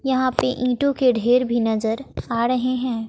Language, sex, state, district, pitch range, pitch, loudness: Hindi, female, Bihar, West Champaran, 235-255 Hz, 250 Hz, -21 LUFS